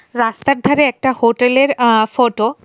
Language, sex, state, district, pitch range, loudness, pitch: Bengali, female, Tripura, West Tripura, 230-270 Hz, -14 LUFS, 245 Hz